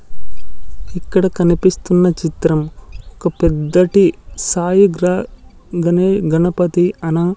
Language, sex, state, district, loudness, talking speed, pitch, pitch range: Telugu, male, Andhra Pradesh, Sri Satya Sai, -15 LUFS, 80 wpm, 175 Hz, 160-180 Hz